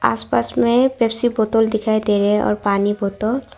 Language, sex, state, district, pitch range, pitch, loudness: Hindi, female, Arunachal Pradesh, Longding, 200-225 Hz, 215 Hz, -18 LUFS